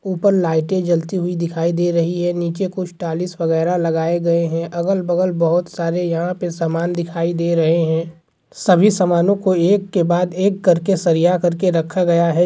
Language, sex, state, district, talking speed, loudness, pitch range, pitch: Hindi, male, Bihar, Gaya, 190 wpm, -18 LUFS, 170-180 Hz, 175 Hz